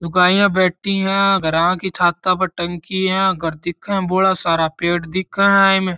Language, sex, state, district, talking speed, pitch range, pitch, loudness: Marwari, male, Rajasthan, Churu, 190 wpm, 175-195 Hz, 185 Hz, -17 LUFS